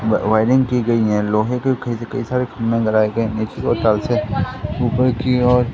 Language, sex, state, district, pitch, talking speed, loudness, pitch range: Hindi, male, Madhya Pradesh, Katni, 115 Hz, 200 wpm, -18 LUFS, 110-125 Hz